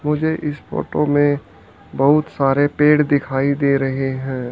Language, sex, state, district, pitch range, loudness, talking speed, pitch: Hindi, male, Haryana, Charkhi Dadri, 135-150 Hz, -18 LUFS, 145 wpm, 140 Hz